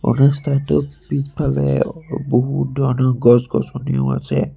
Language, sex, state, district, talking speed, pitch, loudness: Assamese, male, Assam, Sonitpur, 80 wpm, 125 Hz, -18 LUFS